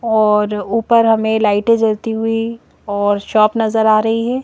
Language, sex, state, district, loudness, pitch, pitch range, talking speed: Hindi, female, Madhya Pradesh, Bhopal, -15 LUFS, 220 Hz, 210-225 Hz, 160 wpm